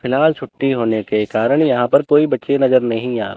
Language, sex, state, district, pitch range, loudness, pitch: Hindi, male, Chandigarh, Chandigarh, 115-135 Hz, -16 LUFS, 130 Hz